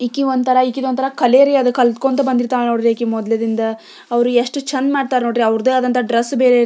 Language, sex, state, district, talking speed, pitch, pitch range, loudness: Kannada, female, Karnataka, Belgaum, 45 wpm, 250 Hz, 235-265 Hz, -16 LUFS